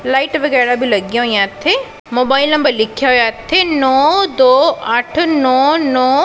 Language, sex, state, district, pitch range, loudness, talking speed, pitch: Punjabi, female, Punjab, Pathankot, 245-305 Hz, -13 LUFS, 165 wpm, 265 Hz